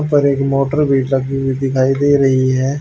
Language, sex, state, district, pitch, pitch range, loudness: Hindi, male, Haryana, Charkhi Dadri, 135 Hz, 135-140 Hz, -15 LUFS